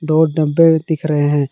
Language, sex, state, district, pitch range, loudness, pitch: Hindi, male, Jharkhand, Palamu, 150-160 Hz, -14 LUFS, 155 Hz